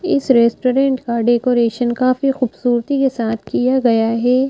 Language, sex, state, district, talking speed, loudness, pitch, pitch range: Hindi, female, Madhya Pradesh, Bhopal, 160 wpm, -16 LUFS, 250 Hz, 235-260 Hz